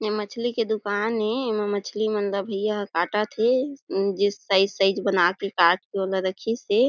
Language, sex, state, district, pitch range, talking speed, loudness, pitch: Chhattisgarhi, female, Chhattisgarh, Jashpur, 195-220 Hz, 210 wpm, -24 LUFS, 205 Hz